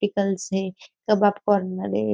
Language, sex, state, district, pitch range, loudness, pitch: Hindi, female, Maharashtra, Nagpur, 185-205 Hz, -23 LUFS, 195 Hz